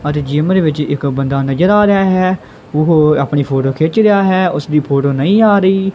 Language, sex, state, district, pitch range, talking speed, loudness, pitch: Punjabi, female, Punjab, Kapurthala, 145-190 Hz, 220 wpm, -13 LUFS, 155 Hz